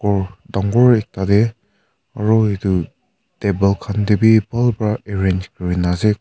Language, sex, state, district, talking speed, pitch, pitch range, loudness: Nagamese, male, Nagaland, Kohima, 145 wpm, 105 Hz, 95-110 Hz, -17 LUFS